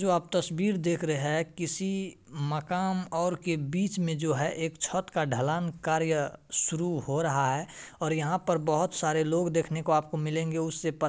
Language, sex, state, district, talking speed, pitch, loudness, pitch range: Hindi, male, Bihar, Madhepura, 195 wpm, 165 Hz, -29 LUFS, 155-175 Hz